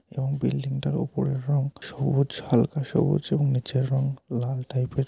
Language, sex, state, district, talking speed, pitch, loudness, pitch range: Bengali, male, West Bengal, North 24 Parganas, 155 wpm, 135 Hz, -26 LUFS, 130-140 Hz